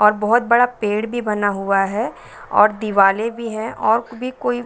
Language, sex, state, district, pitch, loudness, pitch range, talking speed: Hindi, female, Bihar, Saran, 220 Hz, -18 LUFS, 210-235 Hz, 205 wpm